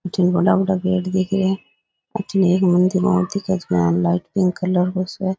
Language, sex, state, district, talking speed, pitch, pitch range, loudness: Rajasthani, male, Rajasthan, Nagaur, 225 wpm, 185 Hz, 180-190 Hz, -19 LUFS